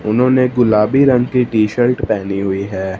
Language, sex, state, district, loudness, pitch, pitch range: Hindi, male, Punjab, Fazilka, -14 LUFS, 110 Hz, 100-125 Hz